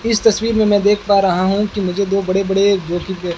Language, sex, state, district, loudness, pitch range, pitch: Hindi, male, Rajasthan, Bikaner, -16 LUFS, 190-205 Hz, 200 Hz